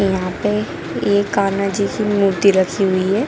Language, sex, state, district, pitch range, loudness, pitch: Hindi, female, Jharkhand, Jamtara, 190-205 Hz, -17 LUFS, 200 Hz